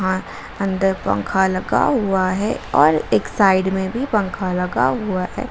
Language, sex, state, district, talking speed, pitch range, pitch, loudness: Hindi, female, Jharkhand, Garhwa, 155 wpm, 185-200 Hz, 190 Hz, -19 LUFS